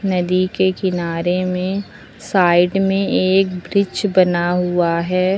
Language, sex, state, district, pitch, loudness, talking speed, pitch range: Hindi, female, Uttar Pradesh, Lucknow, 185 Hz, -17 LUFS, 120 wpm, 180-195 Hz